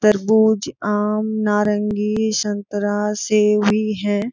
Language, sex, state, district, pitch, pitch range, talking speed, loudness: Hindi, female, Jharkhand, Sahebganj, 210 Hz, 210-215 Hz, 95 wpm, -19 LUFS